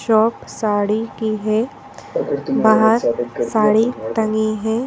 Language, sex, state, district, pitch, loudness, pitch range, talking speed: Hindi, female, Madhya Pradesh, Bhopal, 220 Hz, -18 LUFS, 215-230 Hz, 100 wpm